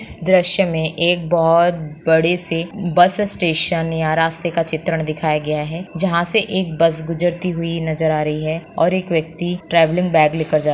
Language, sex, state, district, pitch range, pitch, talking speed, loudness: Hindi, female, Bihar, Samastipur, 160-175 Hz, 165 Hz, 185 wpm, -18 LUFS